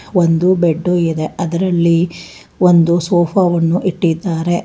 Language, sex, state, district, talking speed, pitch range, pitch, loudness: Kannada, female, Karnataka, Bangalore, 105 wpm, 170-180 Hz, 170 Hz, -14 LUFS